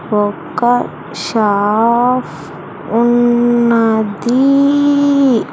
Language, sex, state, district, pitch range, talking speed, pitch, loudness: Telugu, female, Andhra Pradesh, Sri Satya Sai, 220-255 Hz, 35 wpm, 240 Hz, -13 LUFS